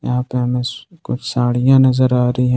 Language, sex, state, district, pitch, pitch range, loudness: Hindi, male, Jharkhand, Ranchi, 125 Hz, 125-130 Hz, -16 LUFS